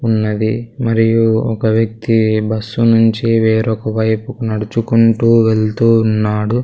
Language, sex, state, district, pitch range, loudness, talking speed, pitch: Telugu, male, Andhra Pradesh, Sri Satya Sai, 110-115 Hz, -14 LUFS, 100 wpm, 110 Hz